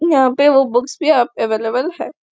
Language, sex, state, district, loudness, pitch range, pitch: Hindi, female, Chhattisgarh, Bastar, -15 LUFS, 240-285 Hz, 260 Hz